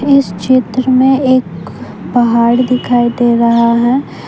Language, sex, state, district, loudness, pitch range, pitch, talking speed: Hindi, female, Jharkhand, Ranchi, -11 LUFS, 235-255 Hz, 245 Hz, 125 wpm